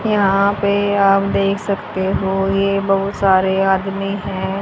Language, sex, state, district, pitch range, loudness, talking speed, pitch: Hindi, female, Haryana, Rohtak, 195-200 Hz, -17 LUFS, 140 wpm, 195 Hz